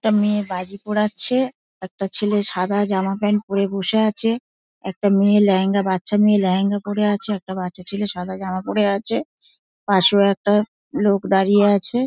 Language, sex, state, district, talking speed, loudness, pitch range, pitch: Bengali, female, West Bengal, Dakshin Dinajpur, 165 wpm, -19 LUFS, 190-210 Hz, 200 Hz